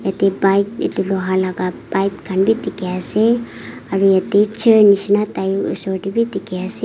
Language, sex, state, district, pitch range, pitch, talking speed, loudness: Nagamese, female, Nagaland, Kohima, 190-210 Hz, 195 Hz, 175 wpm, -17 LUFS